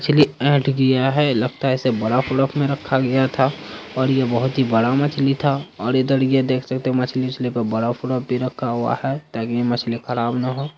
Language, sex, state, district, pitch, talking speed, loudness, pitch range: Hindi, male, Bihar, Saharsa, 130 Hz, 215 wpm, -20 LUFS, 120-135 Hz